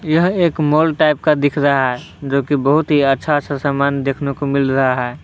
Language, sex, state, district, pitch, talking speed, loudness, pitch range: Hindi, male, Jharkhand, Palamu, 140 Hz, 215 wpm, -16 LUFS, 140-150 Hz